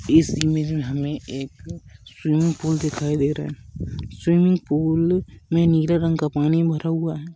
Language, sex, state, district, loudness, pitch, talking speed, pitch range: Hindi, male, Rajasthan, Churu, -21 LUFS, 155 Hz, 170 wpm, 150-165 Hz